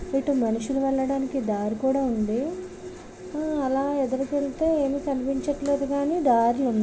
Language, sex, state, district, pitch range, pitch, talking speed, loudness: Telugu, female, Andhra Pradesh, Srikakulam, 260-285 Hz, 275 Hz, 125 wpm, -25 LUFS